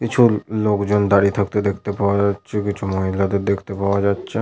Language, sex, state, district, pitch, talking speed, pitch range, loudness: Bengali, male, West Bengal, Malda, 100 Hz, 165 wpm, 100-105 Hz, -19 LUFS